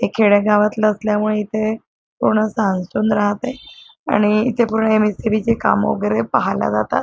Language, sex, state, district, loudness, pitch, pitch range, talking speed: Marathi, female, Maharashtra, Chandrapur, -17 LUFS, 215 Hz, 210-220 Hz, 160 wpm